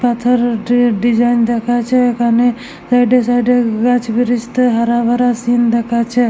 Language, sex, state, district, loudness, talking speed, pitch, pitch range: Bengali, male, West Bengal, Jalpaiguri, -14 LUFS, 145 wpm, 240 Hz, 235-245 Hz